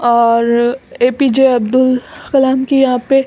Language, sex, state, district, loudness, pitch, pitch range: Hindi, female, Chhattisgarh, Balrampur, -13 LUFS, 255 Hz, 240-270 Hz